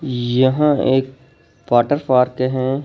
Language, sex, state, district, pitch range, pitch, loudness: Hindi, male, Madhya Pradesh, Bhopal, 125-135 Hz, 130 Hz, -17 LUFS